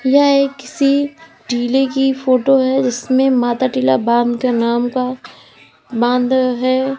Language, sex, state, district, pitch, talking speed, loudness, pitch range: Hindi, female, Uttar Pradesh, Lalitpur, 255 Hz, 130 wpm, -15 LUFS, 240-270 Hz